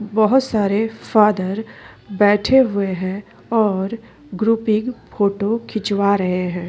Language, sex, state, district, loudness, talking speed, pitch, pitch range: Hindi, female, Chhattisgarh, Korba, -18 LUFS, 105 wpm, 210 Hz, 200-225 Hz